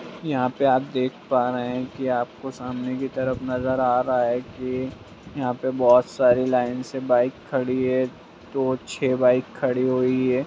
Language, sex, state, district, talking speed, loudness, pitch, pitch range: Hindi, male, Bihar, Jamui, 185 wpm, -23 LUFS, 130 Hz, 125-130 Hz